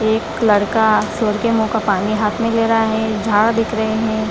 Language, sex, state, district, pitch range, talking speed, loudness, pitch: Hindi, female, Bihar, Lakhisarai, 215-225 Hz, 210 wpm, -16 LUFS, 220 Hz